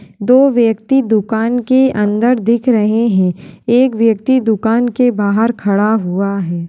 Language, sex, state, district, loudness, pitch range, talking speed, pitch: Kumaoni, female, Uttarakhand, Tehri Garhwal, -13 LUFS, 205-245 Hz, 145 wpm, 225 Hz